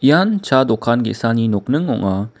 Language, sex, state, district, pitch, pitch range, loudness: Garo, male, Meghalaya, West Garo Hills, 120 Hz, 110-135 Hz, -17 LUFS